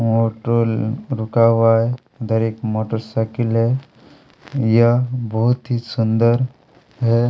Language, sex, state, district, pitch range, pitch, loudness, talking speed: Hindi, male, Chhattisgarh, Kabirdham, 115-120 Hz, 115 Hz, -19 LUFS, 115 wpm